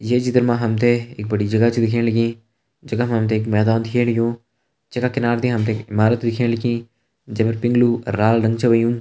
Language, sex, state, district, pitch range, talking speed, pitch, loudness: Hindi, male, Uttarakhand, Uttarkashi, 115-120 Hz, 240 wpm, 115 Hz, -19 LUFS